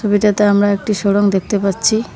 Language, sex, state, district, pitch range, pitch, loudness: Bengali, female, West Bengal, Cooch Behar, 200-210 Hz, 205 Hz, -15 LUFS